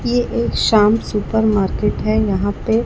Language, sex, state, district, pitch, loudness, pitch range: Hindi, male, Chhattisgarh, Raipur, 215 Hz, -17 LUFS, 205-225 Hz